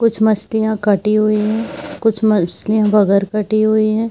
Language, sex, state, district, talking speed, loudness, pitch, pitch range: Hindi, female, Jharkhand, Jamtara, 160 wpm, -15 LUFS, 215 Hz, 210-220 Hz